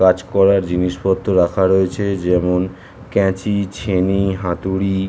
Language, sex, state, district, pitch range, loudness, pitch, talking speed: Bengali, male, West Bengal, North 24 Parganas, 90-100 Hz, -17 LUFS, 95 Hz, 105 wpm